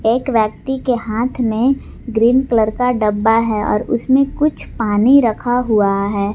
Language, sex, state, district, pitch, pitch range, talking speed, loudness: Hindi, female, Jharkhand, Garhwa, 235 Hz, 220-255 Hz, 160 wpm, -16 LUFS